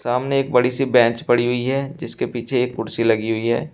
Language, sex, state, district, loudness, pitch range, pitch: Hindi, male, Uttar Pradesh, Shamli, -20 LUFS, 115-135 Hz, 125 Hz